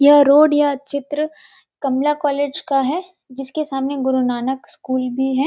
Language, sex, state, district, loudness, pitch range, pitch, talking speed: Hindi, female, Chhattisgarh, Rajnandgaon, -18 LUFS, 265-295 Hz, 280 Hz, 165 wpm